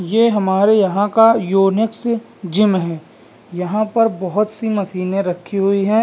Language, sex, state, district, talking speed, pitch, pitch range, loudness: Hindi, male, Bihar, Vaishali, 150 wpm, 200 Hz, 190-220 Hz, -16 LUFS